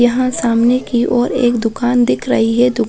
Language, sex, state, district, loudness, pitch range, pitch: Hindi, female, Bihar, Jahanabad, -14 LUFS, 230-245 Hz, 240 Hz